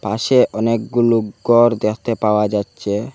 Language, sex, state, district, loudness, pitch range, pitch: Bengali, male, Assam, Hailakandi, -17 LUFS, 105-120 Hz, 110 Hz